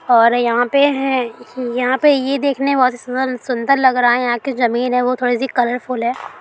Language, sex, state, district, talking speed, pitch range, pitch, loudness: Hindi, female, Bihar, Araria, 215 wpm, 245-265 Hz, 250 Hz, -16 LUFS